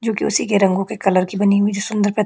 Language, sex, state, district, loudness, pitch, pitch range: Hindi, female, Chhattisgarh, Korba, -17 LUFS, 205 Hz, 195-210 Hz